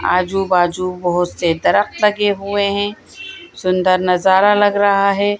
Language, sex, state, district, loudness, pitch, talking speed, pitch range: Hindi, female, Madhya Pradesh, Bhopal, -15 LUFS, 195 Hz, 145 wpm, 185-205 Hz